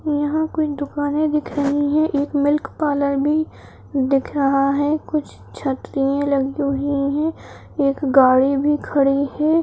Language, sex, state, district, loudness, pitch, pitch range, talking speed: Kumaoni, female, Uttarakhand, Uttarkashi, -19 LUFS, 285 Hz, 275-300 Hz, 145 wpm